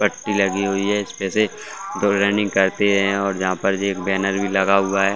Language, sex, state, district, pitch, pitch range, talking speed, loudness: Hindi, male, Chhattisgarh, Bastar, 100 Hz, 95-100 Hz, 220 wpm, -20 LUFS